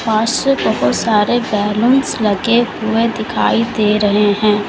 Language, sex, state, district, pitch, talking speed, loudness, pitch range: Hindi, female, Uttar Pradesh, Lalitpur, 220 Hz, 140 wpm, -14 LUFS, 210-235 Hz